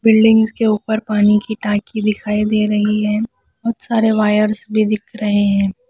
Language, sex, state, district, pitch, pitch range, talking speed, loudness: Hindi, female, Punjab, Pathankot, 215 Hz, 210-220 Hz, 175 wpm, -16 LUFS